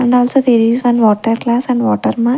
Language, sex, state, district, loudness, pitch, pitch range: English, female, Punjab, Kapurthala, -13 LUFS, 240 Hz, 225-245 Hz